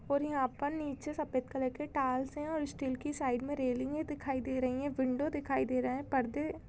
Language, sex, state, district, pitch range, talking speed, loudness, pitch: Hindi, female, Chhattisgarh, Rajnandgaon, 260-295 Hz, 225 wpm, -35 LUFS, 275 Hz